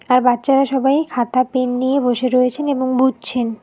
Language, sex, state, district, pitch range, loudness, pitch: Bengali, female, West Bengal, Alipurduar, 250-270 Hz, -17 LUFS, 255 Hz